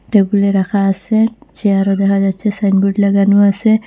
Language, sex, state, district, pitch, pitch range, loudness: Bengali, female, Assam, Hailakandi, 200 Hz, 195-210 Hz, -14 LUFS